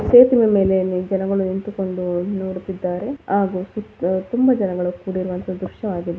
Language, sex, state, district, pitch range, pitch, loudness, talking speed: Kannada, female, Karnataka, Dakshina Kannada, 185-200 Hz, 190 Hz, -20 LUFS, 115 wpm